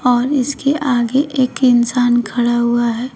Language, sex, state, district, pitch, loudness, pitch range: Hindi, female, Uttar Pradesh, Shamli, 245 Hz, -15 LUFS, 240-265 Hz